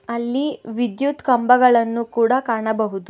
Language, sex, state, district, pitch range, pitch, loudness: Kannada, female, Karnataka, Bangalore, 230-255 Hz, 235 Hz, -19 LUFS